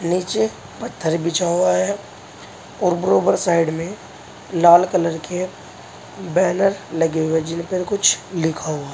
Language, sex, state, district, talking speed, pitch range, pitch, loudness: Hindi, male, Uttar Pradesh, Saharanpur, 135 wpm, 160-185 Hz, 170 Hz, -19 LUFS